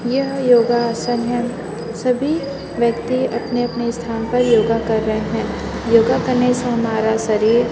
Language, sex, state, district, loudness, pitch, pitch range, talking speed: Hindi, female, Chhattisgarh, Raipur, -18 LUFS, 235 Hz, 225-245 Hz, 140 wpm